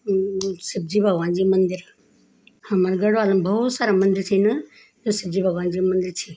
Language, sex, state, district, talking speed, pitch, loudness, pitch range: Garhwali, female, Uttarakhand, Tehri Garhwal, 170 wpm, 195 Hz, -21 LUFS, 185-210 Hz